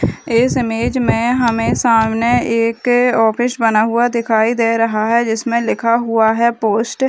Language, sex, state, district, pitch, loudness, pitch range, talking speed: Hindi, female, Bihar, Madhepura, 230 Hz, -15 LUFS, 225-240 Hz, 160 wpm